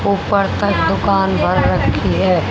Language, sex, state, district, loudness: Hindi, female, Haryana, Charkhi Dadri, -15 LUFS